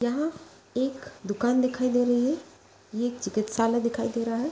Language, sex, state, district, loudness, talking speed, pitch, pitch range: Hindi, female, Chhattisgarh, Rajnandgaon, -27 LUFS, 175 wpm, 245 Hz, 230-255 Hz